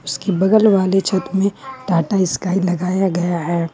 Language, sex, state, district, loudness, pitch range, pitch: Hindi, female, Jharkhand, Ranchi, -17 LUFS, 175-195 Hz, 190 Hz